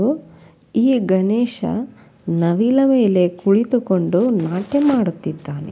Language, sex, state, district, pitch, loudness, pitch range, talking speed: Kannada, female, Karnataka, Belgaum, 215 Hz, -18 LUFS, 180-245 Hz, 75 wpm